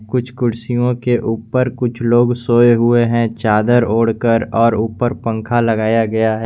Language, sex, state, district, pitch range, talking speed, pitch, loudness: Hindi, male, Jharkhand, Garhwa, 115-120 Hz, 160 wpm, 120 Hz, -15 LUFS